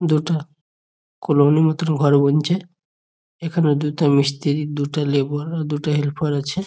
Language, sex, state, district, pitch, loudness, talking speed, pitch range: Bengali, male, West Bengal, Jhargram, 150 Hz, -19 LUFS, 125 wpm, 140-160 Hz